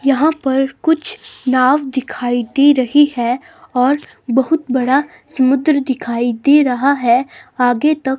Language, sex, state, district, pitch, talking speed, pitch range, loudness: Hindi, female, Himachal Pradesh, Shimla, 270 Hz, 130 wpm, 255-295 Hz, -15 LUFS